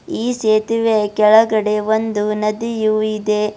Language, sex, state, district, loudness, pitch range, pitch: Kannada, female, Karnataka, Bidar, -16 LUFS, 210-220 Hz, 215 Hz